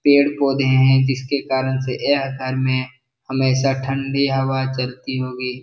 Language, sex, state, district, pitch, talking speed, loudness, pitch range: Hindi, male, Bihar, Jahanabad, 130 Hz, 140 wpm, -19 LUFS, 130-135 Hz